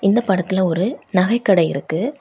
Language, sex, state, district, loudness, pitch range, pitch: Tamil, female, Tamil Nadu, Kanyakumari, -18 LUFS, 185-225 Hz, 190 Hz